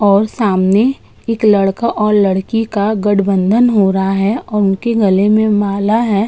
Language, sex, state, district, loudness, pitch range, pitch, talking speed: Hindi, female, Uttar Pradesh, Budaun, -13 LUFS, 195-220 Hz, 205 Hz, 170 wpm